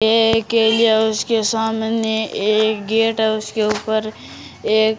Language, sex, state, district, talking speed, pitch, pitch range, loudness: Hindi, male, Rajasthan, Churu, 130 wpm, 220 Hz, 215-225 Hz, -17 LUFS